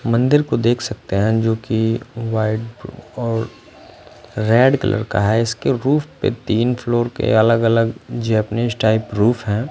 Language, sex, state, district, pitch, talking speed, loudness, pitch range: Hindi, male, Punjab, Fazilka, 115 Hz, 155 wpm, -18 LUFS, 110-120 Hz